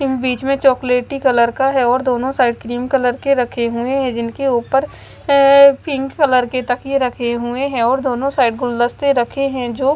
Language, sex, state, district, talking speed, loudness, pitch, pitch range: Hindi, female, Maharashtra, Mumbai Suburban, 195 wpm, -16 LUFS, 255 Hz, 245-275 Hz